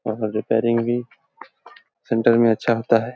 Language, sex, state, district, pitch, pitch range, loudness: Hindi, male, Jharkhand, Jamtara, 115 Hz, 110-115 Hz, -20 LUFS